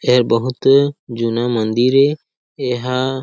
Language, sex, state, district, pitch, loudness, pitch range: Chhattisgarhi, male, Chhattisgarh, Sarguja, 125 Hz, -16 LUFS, 120-135 Hz